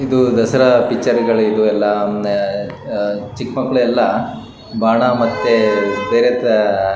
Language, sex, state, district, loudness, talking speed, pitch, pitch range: Kannada, male, Karnataka, Raichur, -15 LUFS, 120 wpm, 115 Hz, 105-120 Hz